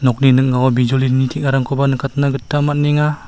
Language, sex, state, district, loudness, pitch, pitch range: Garo, male, Meghalaya, South Garo Hills, -15 LUFS, 135 Hz, 130-145 Hz